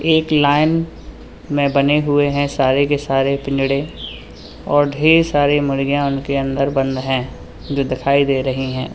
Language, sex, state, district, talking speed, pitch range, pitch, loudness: Hindi, male, Uttar Pradesh, Lalitpur, 155 wpm, 130-145 Hz, 140 Hz, -17 LUFS